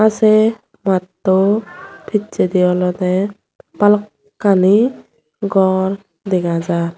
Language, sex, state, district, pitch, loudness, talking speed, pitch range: Chakma, female, Tripura, Unakoti, 190 Hz, -16 LUFS, 70 wpm, 180-210 Hz